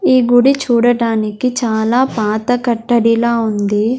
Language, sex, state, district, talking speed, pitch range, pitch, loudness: Telugu, female, Andhra Pradesh, Sri Satya Sai, 105 wpm, 220-250 Hz, 235 Hz, -14 LUFS